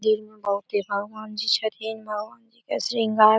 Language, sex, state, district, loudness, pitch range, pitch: Maithili, female, Bihar, Samastipur, -26 LUFS, 210-220 Hz, 215 Hz